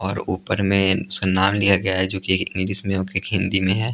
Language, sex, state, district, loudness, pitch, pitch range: Hindi, male, Punjab, Pathankot, -20 LUFS, 95 Hz, 95-100 Hz